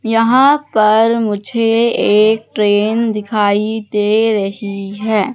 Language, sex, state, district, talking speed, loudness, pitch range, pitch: Hindi, female, Madhya Pradesh, Katni, 100 wpm, -14 LUFS, 210-225 Hz, 215 Hz